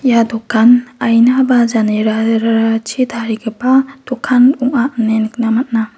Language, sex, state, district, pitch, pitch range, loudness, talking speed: Garo, female, Meghalaya, West Garo Hills, 230 Hz, 225-250 Hz, -13 LUFS, 110 wpm